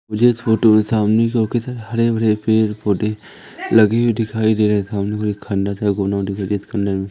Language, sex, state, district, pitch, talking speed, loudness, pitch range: Hindi, male, Madhya Pradesh, Umaria, 110 Hz, 260 wpm, -18 LUFS, 100-115 Hz